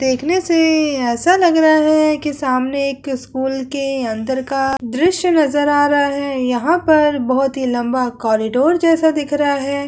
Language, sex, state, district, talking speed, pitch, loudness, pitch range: Hindi, female, Uttar Pradesh, Hamirpur, 165 wpm, 280 Hz, -16 LUFS, 260-310 Hz